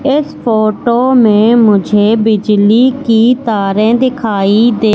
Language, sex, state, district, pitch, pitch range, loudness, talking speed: Hindi, female, Madhya Pradesh, Katni, 225 Hz, 210-240 Hz, -10 LUFS, 110 wpm